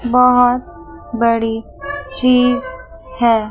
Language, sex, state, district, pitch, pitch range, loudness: Hindi, female, Chandigarh, Chandigarh, 240 Hz, 225-250 Hz, -15 LUFS